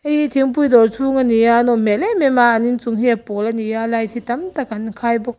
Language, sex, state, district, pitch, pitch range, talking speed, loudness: Mizo, female, Mizoram, Aizawl, 240 Hz, 225-270 Hz, 310 wpm, -16 LUFS